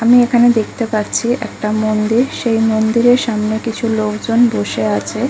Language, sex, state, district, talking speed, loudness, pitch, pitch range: Bengali, female, West Bengal, Kolkata, 145 wpm, -15 LUFS, 225 Hz, 215-240 Hz